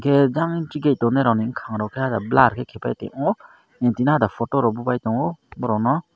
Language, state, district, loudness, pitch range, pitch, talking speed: Kokborok, Tripura, Dhalai, -21 LUFS, 110-140 Hz, 125 Hz, 195 wpm